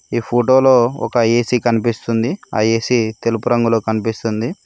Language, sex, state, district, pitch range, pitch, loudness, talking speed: Telugu, male, Telangana, Mahabubabad, 115-120 Hz, 115 Hz, -16 LUFS, 130 wpm